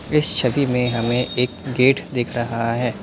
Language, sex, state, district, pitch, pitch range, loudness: Hindi, male, Assam, Kamrup Metropolitan, 125 Hz, 120-130 Hz, -19 LUFS